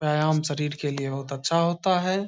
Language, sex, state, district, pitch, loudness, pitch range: Hindi, male, Bihar, Saharsa, 150 Hz, -25 LUFS, 145-170 Hz